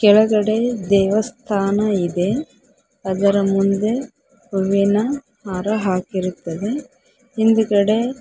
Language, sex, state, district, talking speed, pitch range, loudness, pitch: Kannada, female, Karnataka, Koppal, 65 wpm, 195-235 Hz, -19 LUFS, 210 Hz